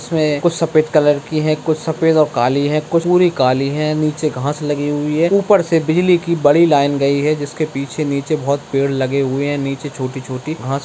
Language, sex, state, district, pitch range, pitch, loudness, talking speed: Hindi, male, Bihar, Madhepura, 140-160 Hz, 150 Hz, -16 LUFS, 215 wpm